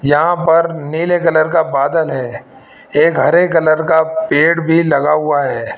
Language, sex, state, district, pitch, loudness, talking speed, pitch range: Hindi, female, Rajasthan, Jaipur, 160 Hz, -13 LUFS, 165 wpm, 150-170 Hz